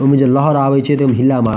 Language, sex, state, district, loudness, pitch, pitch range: Maithili, male, Bihar, Madhepura, -13 LUFS, 135 Hz, 130-140 Hz